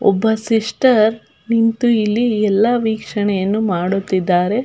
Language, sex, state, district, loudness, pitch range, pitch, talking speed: Kannada, female, Karnataka, Belgaum, -16 LUFS, 200-230 Hz, 220 Hz, 90 wpm